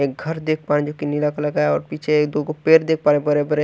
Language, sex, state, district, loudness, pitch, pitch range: Hindi, male, Bihar, Kaimur, -19 LUFS, 150 Hz, 145-155 Hz